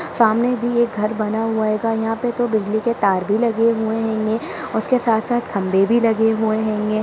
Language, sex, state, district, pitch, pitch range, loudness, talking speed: Hindi, female, Bihar, Darbhanga, 220 Hz, 215-235 Hz, -19 LUFS, 205 wpm